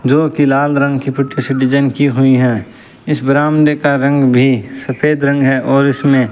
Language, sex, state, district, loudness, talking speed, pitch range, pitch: Hindi, male, Rajasthan, Bikaner, -13 LUFS, 200 wpm, 135-145 Hz, 140 Hz